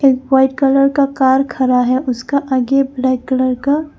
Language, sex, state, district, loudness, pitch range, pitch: Hindi, female, Arunachal Pradesh, Papum Pare, -14 LUFS, 255-275 Hz, 265 Hz